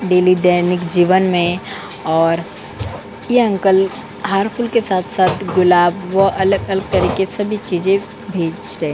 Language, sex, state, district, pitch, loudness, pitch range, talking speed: Hindi, female, Uttar Pradesh, Jyotiba Phule Nagar, 185 Hz, -15 LUFS, 175-195 Hz, 120 wpm